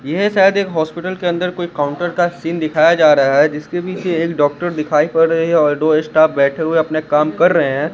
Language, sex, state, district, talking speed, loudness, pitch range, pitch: Hindi, male, Chandigarh, Chandigarh, 240 wpm, -15 LUFS, 150-175 Hz, 160 Hz